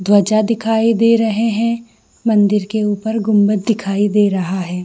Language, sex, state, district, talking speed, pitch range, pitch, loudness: Hindi, female, Jharkhand, Jamtara, 160 wpm, 205-225 Hz, 215 Hz, -15 LUFS